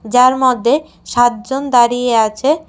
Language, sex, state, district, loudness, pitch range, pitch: Bengali, female, Tripura, West Tripura, -14 LUFS, 240-265 Hz, 245 Hz